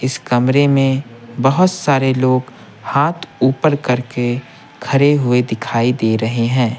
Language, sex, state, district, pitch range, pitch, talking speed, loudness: Hindi, male, Bihar, Patna, 120-140 Hz, 130 Hz, 130 wpm, -16 LUFS